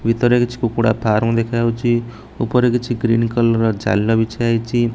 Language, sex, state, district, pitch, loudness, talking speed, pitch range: Odia, male, Odisha, Nuapada, 115 Hz, -17 LUFS, 145 wpm, 115-120 Hz